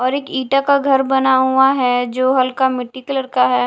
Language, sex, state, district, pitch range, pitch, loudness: Hindi, female, Delhi, New Delhi, 255-270 Hz, 260 Hz, -16 LUFS